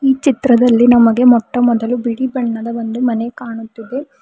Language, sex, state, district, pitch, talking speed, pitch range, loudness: Kannada, female, Karnataka, Bidar, 240 Hz, 130 wpm, 230-250 Hz, -13 LUFS